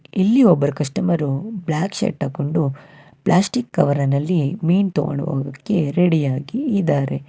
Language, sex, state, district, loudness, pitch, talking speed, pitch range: Kannada, male, Karnataka, Bangalore, -19 LUFS, 155 Hz, 125 wpm, 145-190 Hz